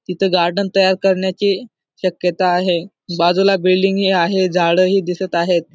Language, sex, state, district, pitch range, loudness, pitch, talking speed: Marathi, male, Maharashtra, Dhule, 175-195 Hz, -16 LUFS, 185 Hz, 145 wpm